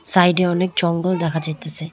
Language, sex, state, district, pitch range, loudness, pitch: Bengali, female, West Bengal, Cooch Behar, 160-180 Hz, -19 LUFS, 175 Hz